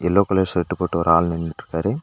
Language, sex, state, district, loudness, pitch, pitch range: Tamil, male, Tamil Nadu, Nilgiris, -20 LUFS, 90 Hz, 85-95 Hz